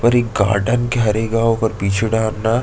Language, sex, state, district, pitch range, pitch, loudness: Chhattisgarhi, male, Chhattisgarh, Sarguja, 110-115 Hz, 110 Hz, -17 LUFS